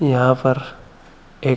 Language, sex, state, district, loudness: Hindi, male, Chhattisgarh, Bilaspur, -18 LUFS